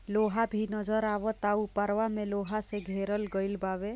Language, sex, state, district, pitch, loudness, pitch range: Bhojpuri, female, Bihar, Gopalganj, 210 Hz, -31 LUFS, 200-215 Hz